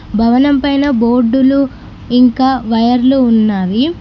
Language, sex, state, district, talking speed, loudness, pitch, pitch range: Telugu, female, Telangana, Mahabubabad, 90 wpm, -11 LUFS, 250 Hz, 235-270 Hz